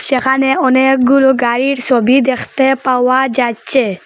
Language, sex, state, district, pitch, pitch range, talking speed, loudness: Bengali, female, Assam, Hailakandi, 260 Hz, 250-265 Hz, 105 wpm, -12 LUFS